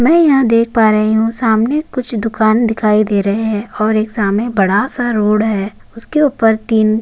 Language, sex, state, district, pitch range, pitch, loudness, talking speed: Hindi, male, Uttarakhand, Tehri Garhwal, 215-235 Hz, 220 Hz, -14 LUFS, 205 wpm